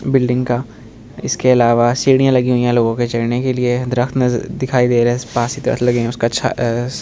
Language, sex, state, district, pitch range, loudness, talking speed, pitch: Hindi, male, Delhi, New Delhi, 120-125 Hz, -16 LUFS, 190 wpm, 120 Hz